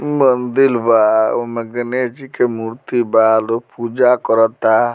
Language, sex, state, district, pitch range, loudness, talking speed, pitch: Bhojpuri, male, Bihar, Muzaffarpur, 115-125 Hz, -15 LUFS, 135 wpm, 120 Hz